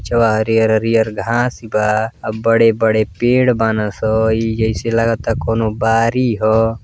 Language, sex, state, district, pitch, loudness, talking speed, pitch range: Bhojpuri, male, Uttar Pradesh, Deoria, 110 Hz, -15 LUFS, 140 wpm, 110-115 Hz